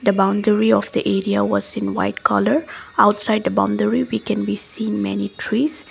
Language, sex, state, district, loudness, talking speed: English, female, Assam, Kamrup Metropolitan, -19 LUFS, 180 wpm